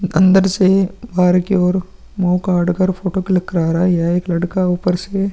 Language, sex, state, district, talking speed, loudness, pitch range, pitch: Hindi, male, Uttar Pradesh, Muzaffarnagar, 215 wpm, -16 LUFS, 180-190 Hz, 185 Hz